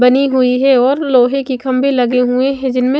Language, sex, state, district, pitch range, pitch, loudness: Hindi, female, Chandigarh, Chandigarh, 250-270 Hz, 260 Hz, -13 LUFS